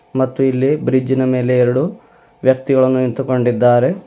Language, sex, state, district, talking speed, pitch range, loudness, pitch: Kannada, male, Karnataka, Bidar, 120 wpm, 125-135 Hz, -15 LUFS, 130 Hz